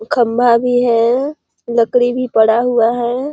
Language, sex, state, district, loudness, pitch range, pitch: Hindi, female, Chhattisgarh, Sarguja, -14 LUFS, 235-250 Hz, 240 Hz